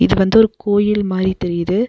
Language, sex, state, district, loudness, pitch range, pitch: Tamil, female, Tamil Nadu, Nilgiris, -16 LUFS, 190-210 Hz, 200 Hz